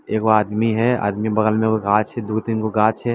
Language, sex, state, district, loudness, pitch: Maithili, male, Bihar, Lakhisarai, -19 LUFS, 110 Hz